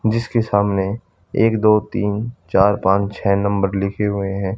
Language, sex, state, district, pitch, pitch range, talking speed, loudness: Hindi, male, Haryana, Charkhi Dadri, 100 Hz, 100-110 Hz, 155 wpm, -18 LUFS